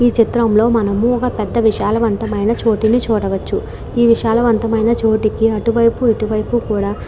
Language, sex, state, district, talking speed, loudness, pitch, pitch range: Telugu, female, Andhra Pradesh, Krishna, 135 wpm, -15 LUFS, 225 Hz, 215-235 Hz